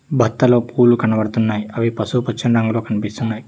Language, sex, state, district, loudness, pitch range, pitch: Telugu, male, Telangana, Hyderabad, -17 LUFS, 110-120 Hz, 115 Hz